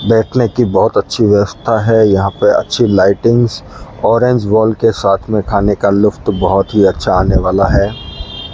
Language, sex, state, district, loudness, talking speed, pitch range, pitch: Hindi, male, Rajasthan, Bikaner, -12 LUFS, 160 wpm, 100-115 Hz, 105 Hz